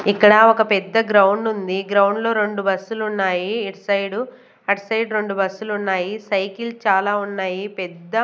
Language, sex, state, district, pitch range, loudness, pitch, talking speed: Telugu, female, Andhra Pradesh, Manyam, 195-220 Hz, -19 LUFS, 205 Hz, 155 wpm